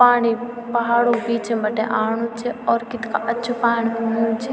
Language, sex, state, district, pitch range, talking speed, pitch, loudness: Garhwali, female, Uttarakhand, Tehri Garhwal, 225-240 Hz, 170 wpm, 235 Hz, -21 LUFS